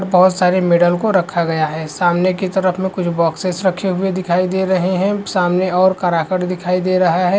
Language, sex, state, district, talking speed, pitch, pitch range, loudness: Hindi, male, Chhattisgarh, Bastar, 220 wpm, 185 Hz, 175-190 Hz, -16 LUFS